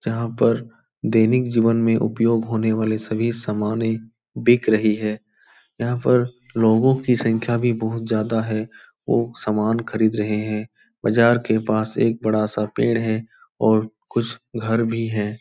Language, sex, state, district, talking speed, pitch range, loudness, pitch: Hindi, male, Bihar, Supaul, 155 wpm, 110-115 Hz, -21 LUFS, 115 Hz